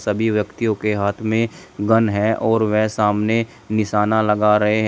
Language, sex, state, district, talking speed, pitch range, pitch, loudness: Hindi, male, Uttar Pradesh, Shamli, 170 wpm, 105-110 Hz, 110 Hz, -19 LUFS